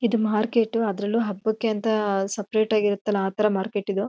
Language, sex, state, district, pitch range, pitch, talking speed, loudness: Kannada, female, Karnataka, Chamarajanagar, 205-220 Hz, 210 Hz, 160 wpm, -24 LUFS